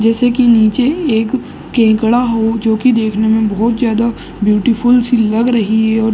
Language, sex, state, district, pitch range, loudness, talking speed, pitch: Hindi, male, Uttar Pradesh, Ghazipur, 220-245 Hz, -13 LUFS, 185 wpm, 225 Hz